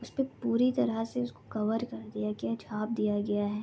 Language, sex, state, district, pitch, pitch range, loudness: Hindi, female, West Bengal, Jalpaiguri, 215 Hz, 205-230 Hz, -32 LUFS